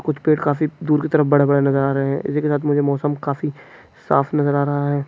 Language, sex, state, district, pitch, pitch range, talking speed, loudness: Hindi, male, Chhattisgarh, Kabirdham, 145 Hz, 140-150 Hz, 250 wpm, -19 LUFS